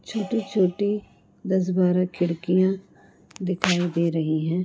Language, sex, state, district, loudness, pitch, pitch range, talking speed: Hindi, female, Goa, North and South Goa, -24 LUFS, 185 Hz, 175-195 Hz, 115 wpm